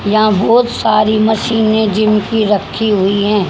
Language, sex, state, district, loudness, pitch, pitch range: Hindi, female, Haryana, Rohtak, -12 LUFS, 215 Hz, 205-220 Hz